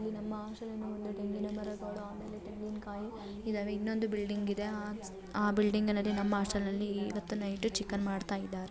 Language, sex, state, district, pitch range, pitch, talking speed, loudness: Kannada, female, Karnataka, Chamarajanagar, 205-210 Hz, 210 Hz, 160 wpm, -36 LUFS